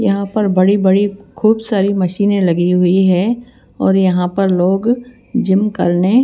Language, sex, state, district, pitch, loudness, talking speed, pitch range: Hindi, female, Himachal Pradesh, Shimla, 195 Hz, -14 LUFS, 155 wpm, 185-215 Hz